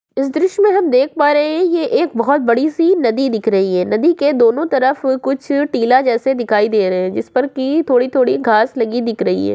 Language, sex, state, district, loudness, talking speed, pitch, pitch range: Hindi, female, Uttar Pradesh, Jyotiba Phule Nagar, -15 LUFS, 230 wpm, 260 Hz, 230-290 Hz